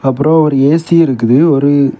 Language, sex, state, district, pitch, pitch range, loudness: Tamil, male, Tamil Nadu, Kanyakumari, 140 Hz, 135-160 Hz, -10 LUFS